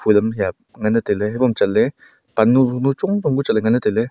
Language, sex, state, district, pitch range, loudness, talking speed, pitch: Wancho, male, Arunachal Pradesh, Longding, 110-130 Hz, -18 LUFS, 175 wpm, 120 Hz